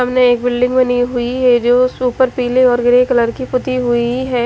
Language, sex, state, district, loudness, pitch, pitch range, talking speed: Hindi, female, Haryana, Charkhi Dadri, -14 LUFS, 250 Hz, 245-255 Hz, 230 wpm